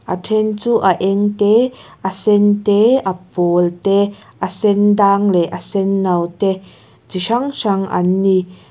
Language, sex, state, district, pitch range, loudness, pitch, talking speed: Mizo, female, Mizoram, Aizawl, 185-205 Hz, -15 LUFS, 195 Hz, 165 wpm